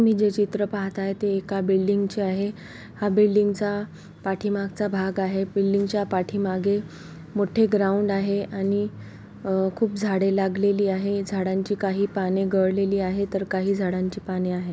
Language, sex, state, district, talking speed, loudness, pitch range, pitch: Marathi, female, Maharashtra, Solapur, 145 wpm, -24 LUFS, 190-205 Hz, 195 Hz